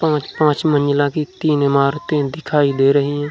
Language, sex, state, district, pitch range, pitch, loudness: Hindi, male, Uttar Pradesh, Muzaffarnagar, 140-150 Hz, 145 Hz, -17 LUFS